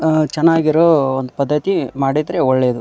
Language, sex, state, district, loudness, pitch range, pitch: Kannada, male, Karnataka, Dharwad, -16 LUFS, 130-160 Hz, 150 Hz